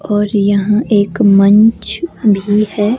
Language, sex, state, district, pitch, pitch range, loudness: Hindi, female, Himachal Pradesh, Shimla, 210 Hz, 205-215 Hz, -12 LUFS